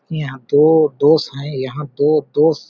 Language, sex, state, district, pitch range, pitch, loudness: Hindi, male, Chhattisgarh, Balrampur, 140-155 Hz, 150 Hz, -16 LUFS